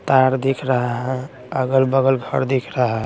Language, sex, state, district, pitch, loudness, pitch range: Hindi, male, Bihar, Patna, 130 Hz, -19 LUFS, 125-135 Hz